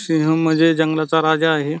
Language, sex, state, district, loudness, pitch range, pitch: Marathi, male, Maharashtra, Pune, -17 LUFS, 155-160 Hz, 160 Hz